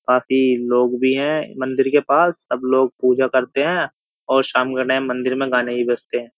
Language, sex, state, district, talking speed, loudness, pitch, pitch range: Hindi, male, Uttar Pradesh, Jyotiba Phule Nagar, 205 wpm, -18 LUFS, 130 Hz, 125-135 Hz